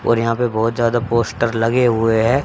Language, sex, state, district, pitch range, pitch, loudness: Hindi, male, Haryana, Charkhi Dadri, 115-120 Hz, 115 Hz, -17 LUFS